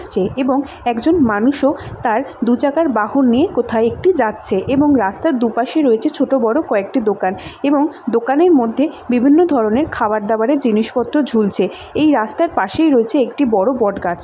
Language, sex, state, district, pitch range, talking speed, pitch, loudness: Bengali, female, West Bengal, Dakshin Dinajpur, 225-290 Hz, 135 wpm, 255 Hz, -15 LUFS